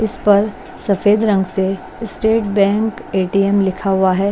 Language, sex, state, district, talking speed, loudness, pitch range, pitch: Hindi, female, Bihar, West Champaran, 155 wpm, -16 LUFS, 190-215 Hz, 200 Hz